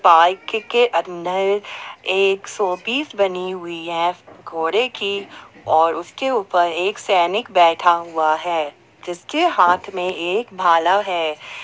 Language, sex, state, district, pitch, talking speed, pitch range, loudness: Hindi, female, Jharkhand, Ranchi, 180 Hz, 130 wpm, 170-200 Hz, -19 LUFS